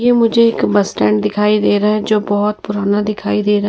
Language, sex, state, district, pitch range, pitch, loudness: Hindi, female, Uttar Pradesh, Muzaffarnagar, 205-215 Hz, 210 Hz, -14 LUFS